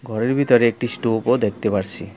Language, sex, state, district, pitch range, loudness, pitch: Bengali, male, West Bengal, Cooch Behar, 115-125 Hz, -19 LUFS, 120 Hz